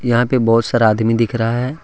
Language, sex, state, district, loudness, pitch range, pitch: Hindi, male, Jharkhand, Deoghar, -15 LUFS, 115-125 Hz, 115 Hz